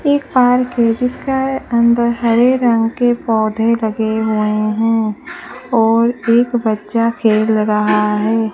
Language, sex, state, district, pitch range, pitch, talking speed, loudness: Hindi, female, Rajasthan, Bikaner, 220-245 Hz, 230 Hz, 125 wpm, -15 LUFS